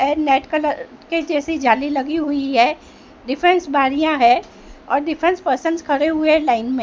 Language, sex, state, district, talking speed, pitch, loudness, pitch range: Hindi, female, Maharashtra, Mumbai Suburban, 165 wpm, 300 Hz, -18 LUFS, 275-320 Hz